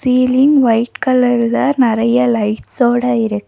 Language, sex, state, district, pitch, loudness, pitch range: Tamil, female, Tamil Nadu, Nilgiris, 245 Hz, -13 LUFS, 230-255 Hz